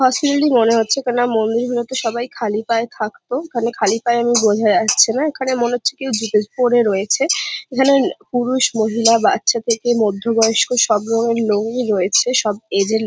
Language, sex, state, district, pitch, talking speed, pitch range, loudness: Bengali, female, West Bengal, Jhargram, 235 Hz, 180 wpm, 220-250 Hz, -17 LUFS